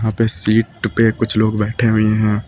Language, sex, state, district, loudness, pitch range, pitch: Hindi, male, Uttar Pradesh, Lucknow, -14 LUFS, 110-115 Hz, 110 Hz